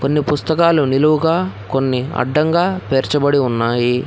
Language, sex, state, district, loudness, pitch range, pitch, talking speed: Telugu, male, Telangana, Hyderabad, -16 LUFS, 125-155 Hz, 140 Hz, 105 wpm